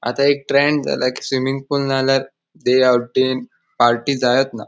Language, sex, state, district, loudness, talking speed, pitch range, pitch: Konkani, male, Goa, North and South Goa, -18 LUFS, 165 wpm, 125-140 Hz, 130 Hz